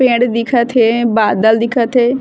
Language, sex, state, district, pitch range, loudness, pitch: Chhattisgarhi, female, Chhattisgarh, Bilaspur, 225-245 Hz, -13 LUFS, 235 Hz